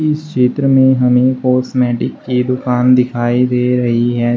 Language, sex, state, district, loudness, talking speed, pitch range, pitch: Hindi, male, Uttar Pradesh, Shamli, -13 LUFS, 150 wpm, 125-130 Hz, 125 Hz